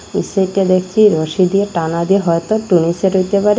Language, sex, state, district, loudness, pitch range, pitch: Bengali, female, Assam, Hailakandi, -14 LUFS, 170-200 Hz, 190 Hz